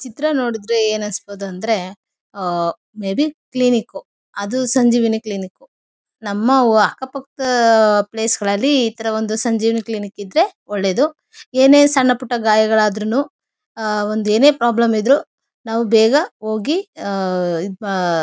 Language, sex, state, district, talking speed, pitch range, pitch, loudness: Kannada, female, Karnataka, Mysore, 120 wpm, 205-255 Hz, 225 Hz, -17 LUFS